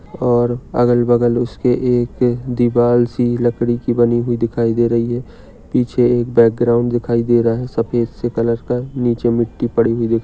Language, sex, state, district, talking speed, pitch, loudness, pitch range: Hindi, male, Maharashtra, Dhule, 175 wpm, 120 Hz, -16 LUFS, 115-120 Hz